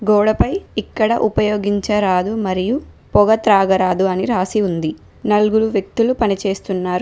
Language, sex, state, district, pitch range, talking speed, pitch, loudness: Telugu, female, Telangana, Mahabubabad, 190-220 Hz, 100 wpm, 205 Hz, -17 LUFS